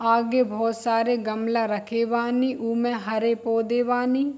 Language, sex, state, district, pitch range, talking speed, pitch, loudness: Hindi, female, Bihar, Darbhanga, 225-245 Hz, 135 wpm, 230 Hz, -24 LUFS